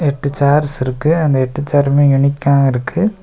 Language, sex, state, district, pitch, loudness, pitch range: Tamil, male, Tamil Nadu, Nilgiris, 140 Hz, -14 LUFS, 140-150 Hz